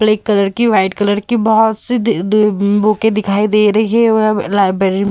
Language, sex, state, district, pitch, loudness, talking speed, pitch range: Hindi, female, Bihar, Vaishali, 215 Hz, -13 LUFS, 200 wpm, 200-220 Hz